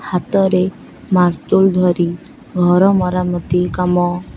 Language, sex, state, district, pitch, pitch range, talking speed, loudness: Odia, female, Odisha, Khordha, 180 Hz, 175-190 Hz, 95 wpm, -15 LUFS